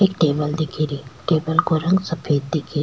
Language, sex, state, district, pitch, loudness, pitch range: Rajasthani, female, Rajasthan, Churu, 155 Hz, -21 LUFS, 145-165 Hz